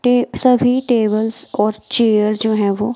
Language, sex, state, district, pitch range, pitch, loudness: Hindi, female, Himachal Pradesh, Shimla, 215-245 Hz, 225 Hz, -16 LUFS